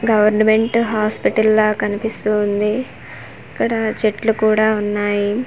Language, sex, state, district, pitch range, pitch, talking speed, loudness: Telugu, female, Andhra Pradesh, Manyam, 210-220 Hz, 215 Hz, 100 wpm, -17 LUFS